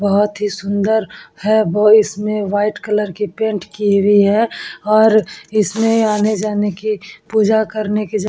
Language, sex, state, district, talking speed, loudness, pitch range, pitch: Hindi, female, Uttar Pradesh, Etah, 160 wpm, -16 LUFS, 205-215 Hz, 210 Hz